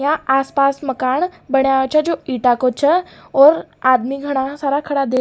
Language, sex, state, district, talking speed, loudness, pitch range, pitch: Rajasthani, female, Rajasthan, Nagaur, 175 wpm, -17 LUFS, 265-290 Hz, 275 Hz